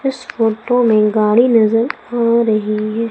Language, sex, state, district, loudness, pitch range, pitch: Hindi, female, Madhya Pradesh, Umaria, -14 LUFS, 215-240 Hz, 230 Hz